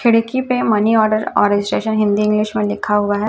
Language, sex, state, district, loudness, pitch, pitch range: Hindi, female, Chhattisgarh, Raipur, -16 LUFS, 215 Hz, 210-225 Hz